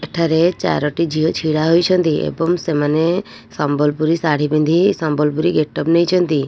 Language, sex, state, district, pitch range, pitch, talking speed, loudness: Odia, female, Odisha, Nuapada, 150-170 Hz, 160 Hz, 130 wpm, -16 LUFS